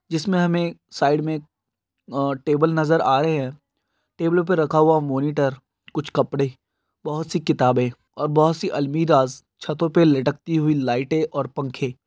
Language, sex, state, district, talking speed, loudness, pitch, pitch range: Hindi, male, Andhra Pradesh, Guntur, 150 wpm, -21 LUFS, 150 Hz, 135-160 Hz